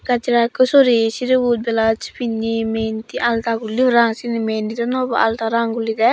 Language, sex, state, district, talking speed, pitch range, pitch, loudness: Chakma, female, Tripura, Dhalai, 175 wpm, 225-240 Hz, 230 Hz, -18 LUFS